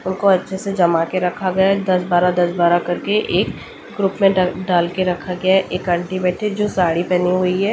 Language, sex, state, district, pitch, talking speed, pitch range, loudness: Hindi, female, Delhi, New Delhi, 185 Hz, 215 wpm, 180-195 Hz, -18 LUFS